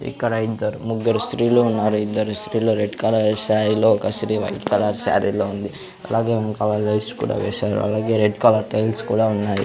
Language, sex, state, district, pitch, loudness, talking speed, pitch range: Telugu, male, Andhra Pradesh, Sri Satya Sai, 110 Hz, -20 LUFS, 180 wpm, 105-115 Hz